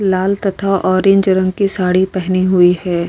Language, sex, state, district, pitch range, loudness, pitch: Hindi, female, Uttar Pradesh, Hamirpur, 185-195 Hz, -14 LUFS, 185 Hz